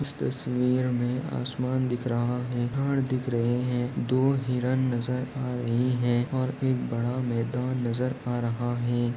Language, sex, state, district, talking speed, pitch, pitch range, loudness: Hindi, male, Maharashtra, Nagpur, 165 wpm, 125 Hz, 120-130 Hz, -27 LUFS